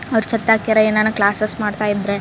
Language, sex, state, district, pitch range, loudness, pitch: Kannada, female, Karnataka, Raichur, 210-220 Hz, -16 LUFS, 215 Hz